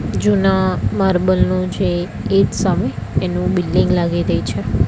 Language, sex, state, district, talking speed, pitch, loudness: Gujarati, female, Gujarat, Gandhinagar, 135 wpm, 140 Hz, -17 LUFS